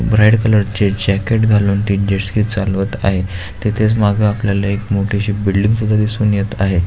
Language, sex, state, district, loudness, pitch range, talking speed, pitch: Marathi, male, Maharashtra, Aurangabad, -15 LUFS, 100-105 Hz, 175 wpm, 100 Hz